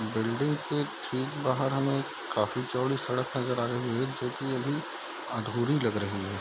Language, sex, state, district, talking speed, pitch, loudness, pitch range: Hindi, male, Bihar, East Champaran, 185 wpm, 125 Hz, -31 LUFS, 115-135 Hz